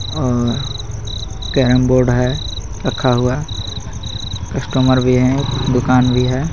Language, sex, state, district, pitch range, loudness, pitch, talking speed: Hindi, male, Jharkhand, Garhwa, 105-130 Hz, -17 LUFS, 125 Hz, 110 wpm